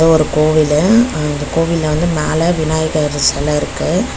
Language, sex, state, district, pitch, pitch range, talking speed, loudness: Tamil, female, Tamil Nadu, Chennai, 155 Hz, 150-165 Hz, 130 wpm, -14 LUFS